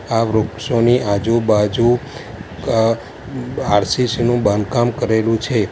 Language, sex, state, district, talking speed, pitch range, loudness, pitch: Gujarati, male, Gujarat, Valsad, 95 wpm, 105-120 Hz, -17 LUFS, 115 Hz